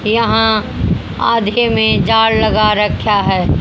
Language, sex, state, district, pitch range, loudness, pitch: Hindi, female, Haryana, Jhajjar, 210-225 Hz, -13 LUFS, 220 Hz